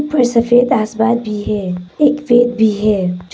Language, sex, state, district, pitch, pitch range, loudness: Hindi, female, Arunachal Pradesh, Papum Pare, 225 Hz, 210-245 Hz, -14 LUFS